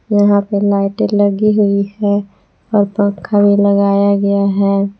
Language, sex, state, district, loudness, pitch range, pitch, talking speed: Hindi, female, Jharkhand, Palamu, -13 LUFS, 200-205 Hz, 200 Hz, 145 wpm